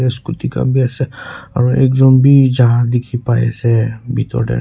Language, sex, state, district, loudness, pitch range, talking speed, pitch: Nagamese, male, Nagaland, Kohima, -14 LUFS, 120-130 Hz, 170 wpm, 125 Hz